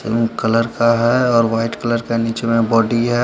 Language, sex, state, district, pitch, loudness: Hindi, male, Chandigarh, Chandigarh, 115 Hz, -16 LUFS